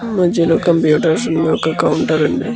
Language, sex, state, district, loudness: Telugu, male, Andhra Pradesh, Guntur, -15 LUFS